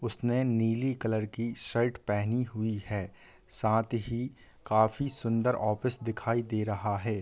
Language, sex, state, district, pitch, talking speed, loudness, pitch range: Hindi, male, Bihar, Gopalganj, 115 Hz, 160 wpm, -30 LUFS, 110-120 Hz